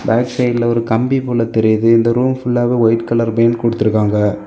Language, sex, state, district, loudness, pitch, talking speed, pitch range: Tamil, male, Tamil Nadu, Kanyakumari, -14 LUFS, 115 Hz, 175 wpm, 110-120 Hz